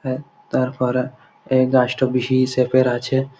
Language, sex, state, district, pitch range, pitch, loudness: Bengali, male, West Bengal, Malda, 125-130 Hz, 130 Hz, -19 LUFS